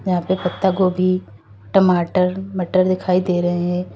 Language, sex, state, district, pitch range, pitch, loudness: Hindi, female, Uttar Pradesh, Lalitpur, 175-185 Hz, 180 Hz, -18 LUFS